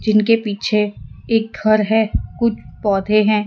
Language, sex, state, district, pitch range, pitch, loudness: Hindi, female, Gujarat, Valsad, 210-220 Hz, 215 Hz, -18 LUFS